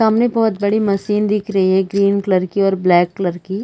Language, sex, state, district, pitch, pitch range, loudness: Hindi, female, Chhattisgarh, Rajnandgaon, 200 Hz, 190-210 Hz, -16 LUFS